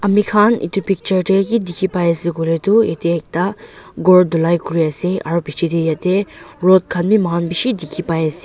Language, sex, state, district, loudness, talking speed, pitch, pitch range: Nagamese, female, Nagaland, Dimapur, -16 LUFS, 190 wpm, 180 Hz, 170-195 Hz